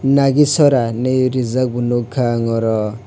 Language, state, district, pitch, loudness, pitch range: Kokborok, Tripura, West Tripura, 125 Hz, -16 LUFS, 115-135 Hz